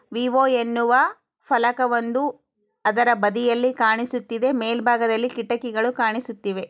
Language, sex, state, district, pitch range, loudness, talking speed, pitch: Kannada, female, Karnataka, Chamarajanagar, 230-250 Hz, -21 LUFS, 90 wpm, 240 Hz